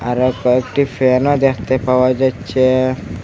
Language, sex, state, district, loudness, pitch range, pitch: Bengali, male, Assam, Hailakandi, -15 LUFS, 125-130 Hz, 130 Hz